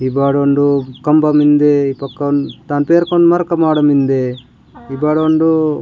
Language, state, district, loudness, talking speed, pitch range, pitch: Gondi, Chhattisgarh, Sukma, -13 LUFS, 165 wpm, 140-155 Hz, 145 Hz